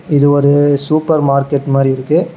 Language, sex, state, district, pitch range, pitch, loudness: Tamil, male, Tamil Nadu, Namakkal, 140-155 Hz, 145 Hz, -12 LUFS